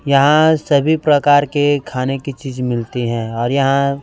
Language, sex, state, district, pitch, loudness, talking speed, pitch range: Hindi, male, Chhattisgarh, Raipur, 140 Hz, -15 LUFS, 165 wpm, 130-145 Hz